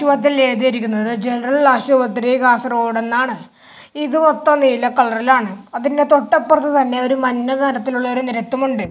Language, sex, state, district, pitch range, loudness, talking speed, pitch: Malayalam, male, Kerala, Kasaragod, 245-280 Hz, -16 LUFS, 130 wpm, 260 Hz